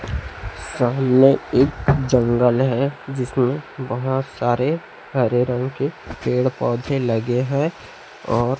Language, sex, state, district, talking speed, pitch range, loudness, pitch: Hindi, male, Chhattisgarh, Raipur, 105 wpm, 120-135 Hz, -20 LUFS, 125 Hz